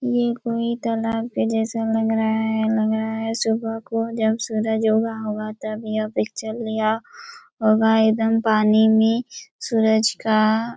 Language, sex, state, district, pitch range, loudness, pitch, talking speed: Hindi, female, Chhattisgarh, Raigarh, 220-225 Hz, -21 LUFS, 220 Hz, 150 wpm